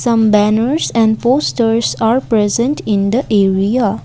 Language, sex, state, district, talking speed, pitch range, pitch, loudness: English, female, Assam, Kamrup Metropolitan, 135 wpm, 210-245 Hz, 225 Hz, -14 LUFS